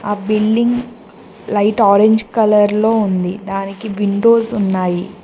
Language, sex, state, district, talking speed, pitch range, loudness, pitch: Telugu, female, Telangana, Mahabubabad, 115 wpm, 200-220 Hz, -15 LUFS, 210 Hz